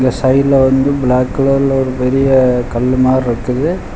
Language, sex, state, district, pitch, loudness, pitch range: Tamil, male, Tamil Nadu, Chennai, 130 Hz, -13 LUFS, 125-135 Hz